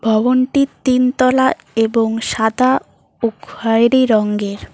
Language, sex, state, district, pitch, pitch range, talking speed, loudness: Bengali, female, West Bengal, Cooch Behar, 230 Hz, 220-255 Hz, 90 wpm, -16 LUFS